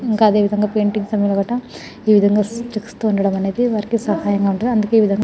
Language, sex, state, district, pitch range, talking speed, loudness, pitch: Telugu, female, Telangana, Nalgonda, 205-225 Hz, 140 wpm, -17 LUFS, 210 Hz